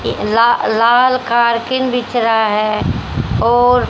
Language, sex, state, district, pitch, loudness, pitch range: Hindi, female, Haryana, Rohtak, 235 Hz, -14 LUFS, 230-245 Hz